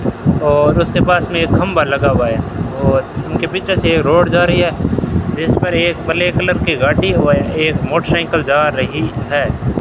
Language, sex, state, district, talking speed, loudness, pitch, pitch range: Hindi, male, Rajasthan, Bikaner, 185 wpm, -14 LUFS, 155 Hz, 145-170 Hz